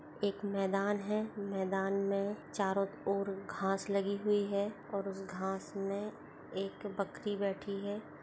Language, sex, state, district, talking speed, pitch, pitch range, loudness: Hindi, female, Chhattisgarh, Bastar, 140 wpm, 200 Hz, 195-205 Hz, -36 LUFS